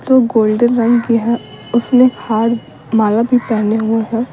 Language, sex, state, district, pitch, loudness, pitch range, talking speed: Hindi, female, Bihar, Patna, 230 Hz, -14 LUFS, 220-240 Hz, 165 wpm